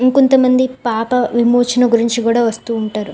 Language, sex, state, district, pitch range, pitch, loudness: Telugu, female, Andhra Pradesh, Visakhapatnam, 230-255 Hz, 240 Hz, -14 LUFS